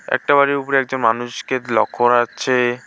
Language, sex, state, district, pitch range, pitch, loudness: Bengali, male, West Bengal, Alipurduar, 120-135 Hz, 125 Hz, -17 LUFS